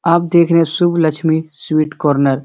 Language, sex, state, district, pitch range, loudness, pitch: Hindi, male, Bihar, Supaul, 150-170 Hz, -14 LUFS, 160 Hz